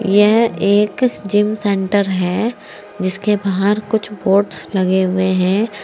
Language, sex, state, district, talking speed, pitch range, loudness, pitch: Hindi, female, Uttar Pradesh, Saharanpur, 125 wpm, 190-210 Hz, -16 LUFS, 205 Hz